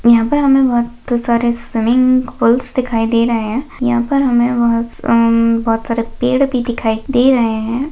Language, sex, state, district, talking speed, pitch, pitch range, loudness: Hindi, female, Maharashtra, Pune, 180 wpm, 235 Hz, 230-255 Hz, -14 LUFS